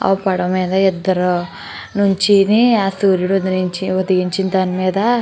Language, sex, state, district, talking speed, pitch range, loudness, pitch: Telugu, female, Andhra Pradesh, Chittoor, 125 wpm, 185-195 Hz, -16 LUFS, 190 Hz